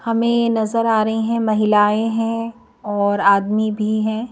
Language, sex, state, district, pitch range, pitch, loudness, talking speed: Hindi, female, Madhya Pradesh, Bhopal, 215-230 Hz, 220 Hz, -18 LUFS, 150 wpm